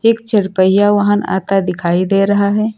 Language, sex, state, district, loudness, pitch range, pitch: Hindi, female, Uttar Pradesh, Lucknow, -13 LUFS, 190-205 Hz, 200 Hz